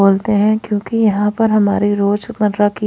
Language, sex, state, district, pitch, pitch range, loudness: Hindi, female, Haryana, Rohtak, 210 Hz, 205-215 Hz, -15 LUFS